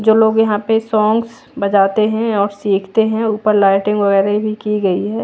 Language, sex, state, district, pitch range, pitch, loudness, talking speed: Hindi, female, Haryana, Jhajjar, 200-220 Hz, 215 Hz, -15 LUFS, 195 wpm